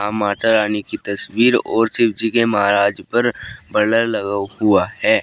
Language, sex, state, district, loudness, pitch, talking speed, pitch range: Hindi, male, Uttar Pradesh, Shamli, -17 LUFS, 105 Hz, 160 wpm, 100-115 Hz